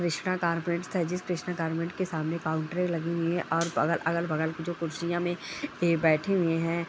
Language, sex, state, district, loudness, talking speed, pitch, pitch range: Hindi, female, Bihar, Darbhanga, -29 LUFS, 185 wpm, 170 Hz, 165-175 Hz